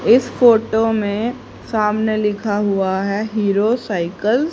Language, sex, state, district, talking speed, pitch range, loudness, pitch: Hindi, female, Haryana, Rohtak, 135 wpm, 205-225 Hz, -18 LUFS, 215 Hz